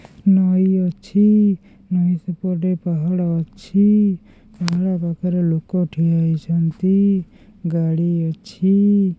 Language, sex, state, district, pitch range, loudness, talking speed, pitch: Odia, male, Odisha, Khordha, 170-195 Hz, -18 LUFS, 85 wpm, 180 Hz